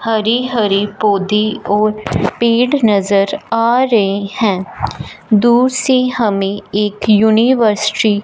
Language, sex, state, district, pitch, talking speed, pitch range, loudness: Hindi, female, Punjab, Fazilka, 215 Hz, 110 wpm, 205-235 Hz, -14 LUFS